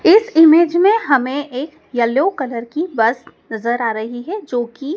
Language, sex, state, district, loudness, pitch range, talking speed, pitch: Hindi, female, Madhya Pradesh, Dhar, -16 LUFS, 240-340 Hz, 170 wpm, 275 Hz